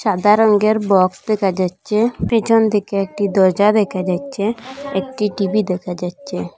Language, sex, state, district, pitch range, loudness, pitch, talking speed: Bengali, female, Assam, Hailakandi, 190-220 Hz, -17 LUFS, 205 Hz, 135 wpm